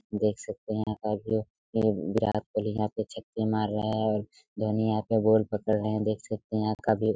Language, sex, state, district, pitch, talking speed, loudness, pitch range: Hindi, male, Bihar, Araria, 110 Hz, 225 wpm, -29 LUFS, 105-110 Hz